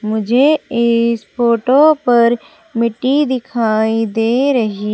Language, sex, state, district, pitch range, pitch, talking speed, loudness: Hindi, female, Madhya Pradesh, Umaria, 225-265 Hz, 235 Hz, 95 wpm, -14 LUFS